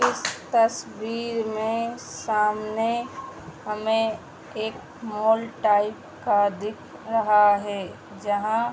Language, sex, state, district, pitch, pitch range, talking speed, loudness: Hindi, female, Uttar Pradesh, Hamirpur, 220 Hz, 210-225 Hz, 95 wpm, -25 LUFS